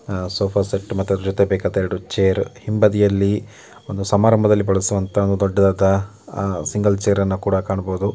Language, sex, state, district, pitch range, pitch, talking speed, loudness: Kannada, male, Karnataka, Mysore, 95-100 Hz, 100 Hz, 140 wpm, -19 LUFS